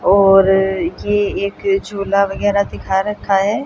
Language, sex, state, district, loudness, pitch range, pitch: Hindi, female, Haryana, Jhajjar, -16 LUFS, 195-205 Hz, 200 Hz